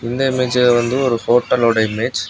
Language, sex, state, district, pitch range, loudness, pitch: Tamil, male, Tamil Nadu, Kanyakumari, 115-125 Hz, -16 LUFS, 120 Hz